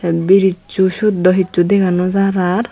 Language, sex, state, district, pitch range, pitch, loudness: Chakma, female, Tripura, Dhalai, 180-195 Hz, 185 Hz, -14 LUFS